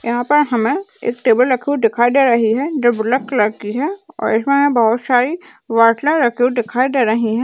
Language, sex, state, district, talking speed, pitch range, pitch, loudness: Hindi, female, Uttarakhand, Uttarkashi, 215 wpm, 230-285 Hz, 245 Hz, -16 LUFS